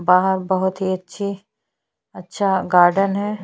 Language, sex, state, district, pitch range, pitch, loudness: Hindi, female, Chhattisgarh, Bastar, 185-200 Hz, 190 Hz, -19 LUFS